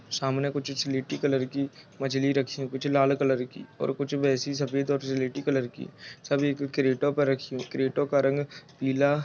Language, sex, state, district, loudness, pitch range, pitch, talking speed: Hindi, male, Chhattisgarh, Raigarh, -28 LUFS, 135-140 Hz, 140 Hz, 180 wpm